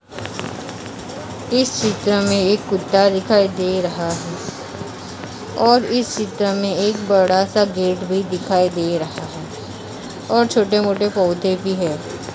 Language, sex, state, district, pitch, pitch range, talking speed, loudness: Hindi, female, Maharashtra, Mumbai Suburban, 195 Hz, 185-210 Hz, 145 wpm, -18 LUFS